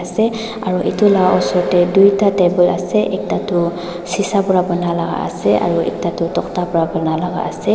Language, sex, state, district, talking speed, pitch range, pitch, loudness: Nagamese, female, Nagaland, Dimapur, 185 wpm, 175-200 Hz, 180 Hz, -16 LUFS